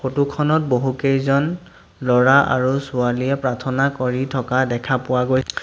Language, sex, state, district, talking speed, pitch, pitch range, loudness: Assamese, male, Assam, Sonitpur, 130 wpm, 130 Hz, 125-140 Hz, -19 LUFS